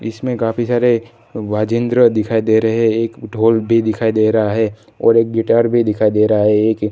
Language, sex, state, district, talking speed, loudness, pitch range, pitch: Hindi, male, Gujarat, Gandhinagar, 210 wpm, -15 LUFS, 110-115 Hz, 110 Hz